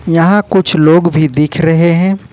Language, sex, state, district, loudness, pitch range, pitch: Hindi, male, Jharkhand, Ranchi, -10 LUFS, 160-185 Hz, 170 Hz